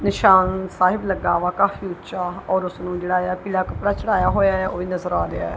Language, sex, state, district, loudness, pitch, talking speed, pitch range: Punjabi, female, Punjab, Kapurthala, -21 LUFS, 185 Hz, 205 wpm, 180-190 Hz